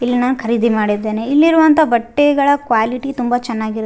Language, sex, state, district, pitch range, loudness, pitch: Kannada, female, Karnataka, Raichur, 225-280 Hz, -15 LUFS, 245 Hz